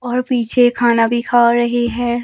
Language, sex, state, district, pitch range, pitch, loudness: Hindi, female, Himachal Pradesh, Shimla, 235-245 Hz, 240 Hz, -15 LUFS